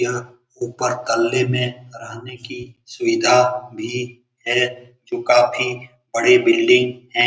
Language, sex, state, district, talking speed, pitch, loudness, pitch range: Hindi, male, Bihar, Lakhisarai, 115 wpm, 125 Hz, -18 LUFS, 120-125 Hz